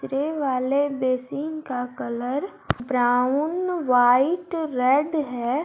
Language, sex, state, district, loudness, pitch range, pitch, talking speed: Hindi, female, Jharkhand, Garhwa, -23 LUFS, 250-305 Hz, 270 Hz, 95 wpm